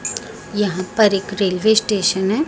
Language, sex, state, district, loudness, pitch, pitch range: Hindi, female, Chhattisgarh, Raipur, -18 LUFS, 205 Hz, 190-215 Hz